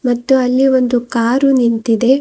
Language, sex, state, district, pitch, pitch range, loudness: Kannada, female, Karnataka, Bidar, 250 Hz, 235-265 Hz, -13 LUFS